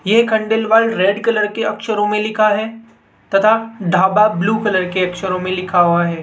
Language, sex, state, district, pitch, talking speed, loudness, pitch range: Hindi, male, Rajasthan, Jaipur, 210 Hz, 185 wpm, -15 LUFS, 185-220 Hz